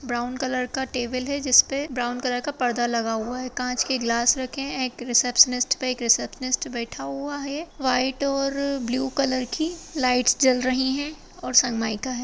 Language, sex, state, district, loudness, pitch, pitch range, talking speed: Hindi, female, Bihar, Madhepura, -23 LUFS, 255 Hz, 245-270 Hz, 190 wpm